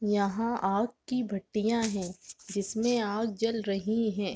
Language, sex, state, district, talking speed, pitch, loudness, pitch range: Hindi, female, Chhattisgarh, Raigarh, 135 wpm, 215 Hz, -30 LUFS, 200-230 Hz